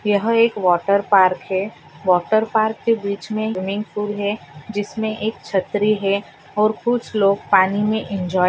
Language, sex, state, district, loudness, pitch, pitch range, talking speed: Hindi, female, Maharashtra, Pune, -19 LUFS, 205 Hz, 190-215 Hz, 170 wpm